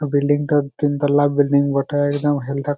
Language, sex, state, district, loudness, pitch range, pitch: Bengali, male, West Bengal, Malda, -18 LUFS, 140-145 Hz, 145 Hz